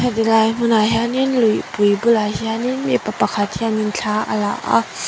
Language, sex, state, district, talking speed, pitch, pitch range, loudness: Mizo, female, Mizoram, Aizawl, 155 wpm, 220 Hz, 210-235 Hz, -18 LUFS